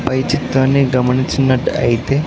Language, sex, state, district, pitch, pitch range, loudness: Telugu, male, Andhra Pradesh, Sri Satya Sai, 130 Hz, 130-140 Hz, -15 LUFS